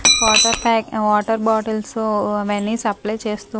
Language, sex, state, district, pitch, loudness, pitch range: Telugu, female, Andhra Pradesh, Manyam, 220 Hz, -17 LUFS, 210-225 Hz